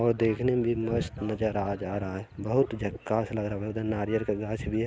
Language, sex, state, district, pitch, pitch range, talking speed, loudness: Hindi, male, Bihar, Bhagalpur, 110 Hz, 105-115 Hz, 245 wpm, -29 LUFS